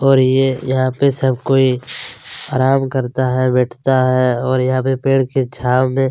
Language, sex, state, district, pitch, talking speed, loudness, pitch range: Hindi, male, Chhattisgarh, Kabirdham, 130 Hz, 175 wpm, -16 LUFS, 130-135 Hz